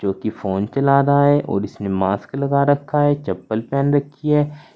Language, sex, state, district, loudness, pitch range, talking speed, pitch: Hindi, male, Uttar Pradesh, Saharanpur, -19 LUFS, 100-145 Hz, 190 wpm, 140 Hz